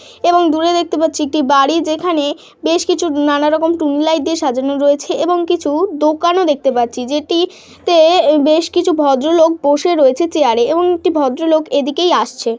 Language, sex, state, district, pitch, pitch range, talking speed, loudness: Bengali, female, West Bengal, Dakshin Dinajpur, 315 Hz, 290-345 Hz, 160 wpm, -14 LUFS